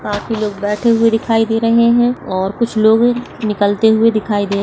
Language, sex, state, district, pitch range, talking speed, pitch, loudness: Hindi, female, Bihar, Madhepura, 205-230 Hz, 220 wpm, 225 Hz, -14 LUFS